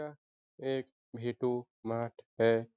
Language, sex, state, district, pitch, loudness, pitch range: Hindi, male, Bihar, Jahanabad, 120 Hz, -35 LUFS, 115-130 Hz